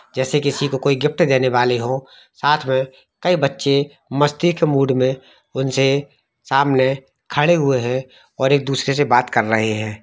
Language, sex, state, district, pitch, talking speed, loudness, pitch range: Hindi, male, Jharkhand, Jamtara, 135 Hz, 175 wpm, -18 LUFS, 130-145 Hz